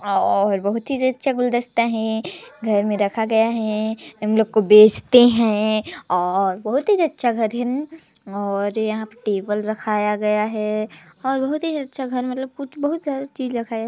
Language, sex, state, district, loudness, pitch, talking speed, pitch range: Hindi, female, Chhattisgarh, Sarguja, -20 LUFS, 220 Hz, 170 wpm, 210-255 Hz